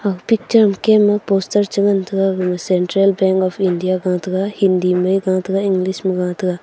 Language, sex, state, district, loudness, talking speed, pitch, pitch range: Wancho, female, Arunachal Pradesh, Longding, -16 LUFS, 225 wpm, 190 Hz, 185-200 Hz